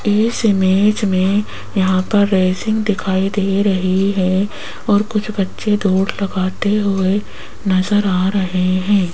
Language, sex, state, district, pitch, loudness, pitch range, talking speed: Hindi, female, Rajasthan, Jaipur, 195 Hz, -16 LUFS, 185-205 Hz, 130 wpm